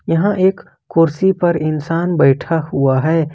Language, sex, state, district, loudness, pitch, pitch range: Hindi, male, Jharkhand, Ranchi, -15 LUFS, 165 Hz, 155-175 Hz